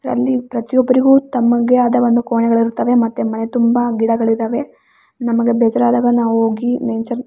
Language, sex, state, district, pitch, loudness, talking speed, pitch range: Kannada, female, Karnataka, Raichur, 240 Hz, -15 LUFS, 130 wpm, 230-245 Hz